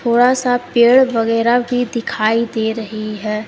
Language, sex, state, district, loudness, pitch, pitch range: Hindi, female, Uttar Pradesh, Lalitpur, -15 LUFS, 235 Hz, 220-245 Hz